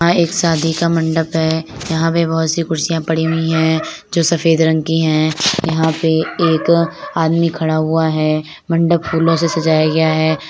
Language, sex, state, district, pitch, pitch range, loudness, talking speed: Hindi, female, Bihar, Purnia, 160 Hz, 160-165 Hz, -15 LUFS, 185 wpm